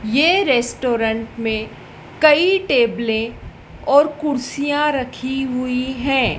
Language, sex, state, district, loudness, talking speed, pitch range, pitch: Hindi, female, Madhya Pradesh, Dhar, -18 LUFS, 95 wpm, 235-290 Hz, 260 Hz